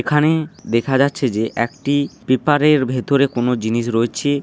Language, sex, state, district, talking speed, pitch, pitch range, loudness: Bengali, male, West Bengal, Dakshin Dinajpur, 150 wpm, 135 Hz, 120-145 Hz, -18 LUFS